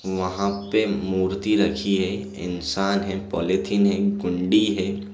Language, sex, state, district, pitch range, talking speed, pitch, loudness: Hindi, male, Chhattisgarh, Balrampur, 95-100 Hz, 130 wpm, 100 Hz, -23 LUFS